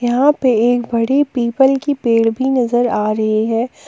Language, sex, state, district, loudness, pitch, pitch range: Hindi, female, Jharkhand, Palamu, -15 LUFS, 240 Hz, 230-265 Hz